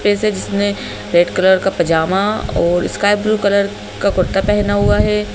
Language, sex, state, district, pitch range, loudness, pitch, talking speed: Hindi, male, Madhya Pradesh, Bhopal, 175-205 Hz, -15 LUFS, 195 Hz, 155 wpm